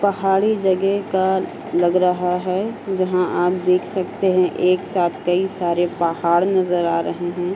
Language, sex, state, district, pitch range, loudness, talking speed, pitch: Hindi, female, Uttar Pradesh, Hamirpur, 175-190 Hz, -19 LUFS, 160 wpm, 185 Hz